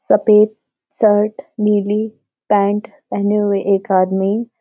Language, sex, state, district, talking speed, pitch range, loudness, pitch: Hindi, female, Uttarakhand, Uttarkashi, 115 wpm, 200-215 Hz, -16 LUFS, 210 Hz